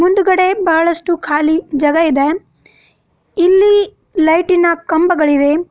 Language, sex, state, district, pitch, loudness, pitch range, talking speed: Kannada, female, Karnataka, Bidar, 340 Hz, -13 LUFS, 315-370 Hz, 85 wpm